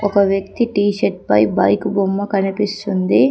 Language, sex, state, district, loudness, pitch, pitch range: Telugu, female, Telangana, Komaram Bheem, -17 LUFS, 200 Hz, 195-205 Hz